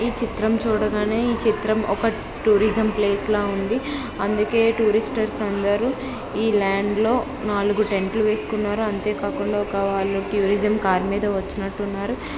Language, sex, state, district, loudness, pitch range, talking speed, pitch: Telugu, female, Andhra Pradesh, Visakhapatnam, -22 LUFS, 200-220 Hz, 110 wpm, 210 Hz